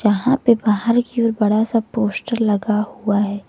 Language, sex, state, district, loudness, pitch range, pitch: Hindi, female, Jharkhand, Garhwa, -18 LUFS, 210-235 Hz, 215 Hz